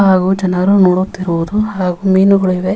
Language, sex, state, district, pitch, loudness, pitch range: Kannada, female, Karnataka, Raichur, 190 Hz, -13 LUFS, 180-195 Hz